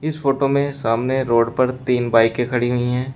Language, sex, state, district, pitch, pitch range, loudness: Hindi, male, Uttar Pradesh, Shamli, 125 Hz, 120-135 Hz, -19 LUFS